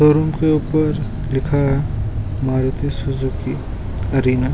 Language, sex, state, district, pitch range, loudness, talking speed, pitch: Hindi, male, Uttar Pradesh, Ghazipur, 120-145 Hz, -20 LUFS, 120 wpm, 130 Hz